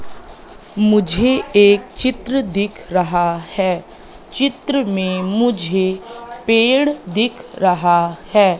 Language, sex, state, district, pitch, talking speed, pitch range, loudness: Hindi, female, Madhya Pradesh, Katni, 205 Hz, 90 wpm, 185-240 Hz, -16 LUFS